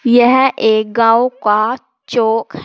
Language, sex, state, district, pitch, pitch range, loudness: Hindi, female, Uttar Pradesh, Saharanpur, 235 Hz, 220-245 Hz, -13 LUFS